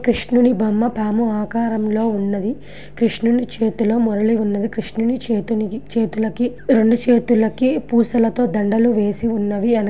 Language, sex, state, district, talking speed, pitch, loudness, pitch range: Telugu, female, Andhra Pradesh, Guntur, 110 wpm, 225 Hz, -18 LUFS, 215-235 Hz